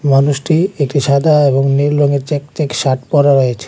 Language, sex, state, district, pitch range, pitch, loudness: Bengali, male, Tripura, West Tripura, 135-145 Hz, 140 Hz, -13 LUFS